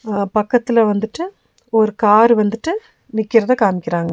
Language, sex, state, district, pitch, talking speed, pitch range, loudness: Tamil, female, Tamil Nadu, Nilgiris, 220 Hz, 115 wpm, 210-245 Hz, -16 LUFS